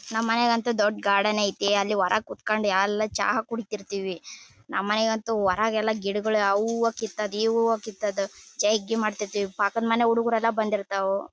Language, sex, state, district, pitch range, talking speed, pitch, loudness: Kannada, female, Karnataka, Bellary, 200-225 Hz, 145 wpm, 215 Hz, -25 LUFS